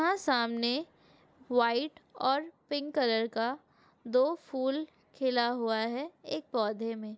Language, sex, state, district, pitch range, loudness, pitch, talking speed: Hindi, female, Chhattisgarh, Bilaspur, 235-295 Hz, -32 LUFS, 260 Hz, 125 wpm